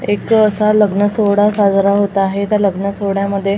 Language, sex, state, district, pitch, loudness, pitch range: Marathi, female, Maharashtra, Gondia, 200 Hz, -14 LUFS, 200-210 Hz